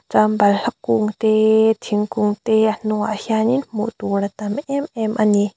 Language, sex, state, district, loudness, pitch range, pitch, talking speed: Mizo, female, Mizoram, Aizawl, -19 LUFS, 210-220 Hz, 215 Hz, 170 wpm